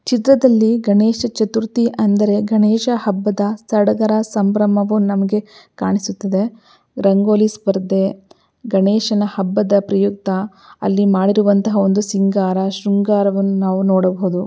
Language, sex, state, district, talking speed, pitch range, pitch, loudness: Kannada, female, Karnataka, Belgaum, 90 wpm, 195-215 Hz, 205 Hz, -16 LUFS